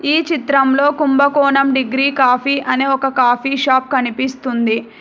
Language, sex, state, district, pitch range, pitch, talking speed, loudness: Telugu, female, Telangana, Hyderabad, 255-280 Hz, 270 Hz, 120 wpm, -15 LUFS